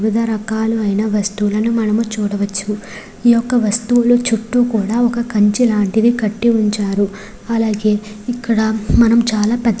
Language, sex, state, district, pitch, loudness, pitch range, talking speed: Telugu, female, Andhra Pradesh, Srikakulam, 220 Hz, -16 LUFS, 210-230 Hz, 120 wpm